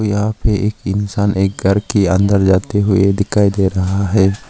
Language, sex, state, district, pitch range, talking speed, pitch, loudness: Hindi, male, Arunachal Pradesh, Lower Dibang Valley, 95-105 Hz, 185 wpm, 100 Hz, -15 LUFS